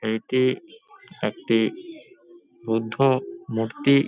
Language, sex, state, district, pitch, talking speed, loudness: Bengali, male, West Bengal, Paschim Medinipur, 135 Hz, 60 wpm, -24 LUFS